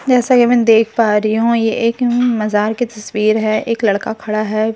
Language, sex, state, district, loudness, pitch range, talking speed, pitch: Hindi, female, Bihar, Katihar, -15 LUFS, 215-235 Hz, 250 wpm, 225 Hz